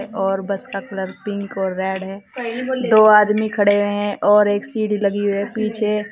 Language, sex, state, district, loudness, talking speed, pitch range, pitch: Hindi, female, Uttar Pradesh, Saharanpur, -18 LUFS, 175 wpm, 200-215 Hz, 205 Hz